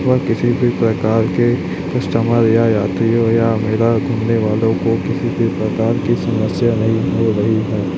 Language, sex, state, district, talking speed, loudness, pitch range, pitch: Hindi, male, Chhattisgarh, Raipur, 165 wpm, -16 LUFS, 110-115 Hz, 115 Hz